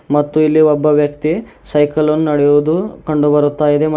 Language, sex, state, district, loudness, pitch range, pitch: Kannada, male, Karnataka, Bidar, -14 LUFS, 145-155 Hz, 150 Hz